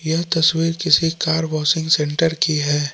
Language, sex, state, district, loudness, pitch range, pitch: Hindi, male, Jharkhand, Palamu, -18 LUFS, 155-165 Hz, 160 Hz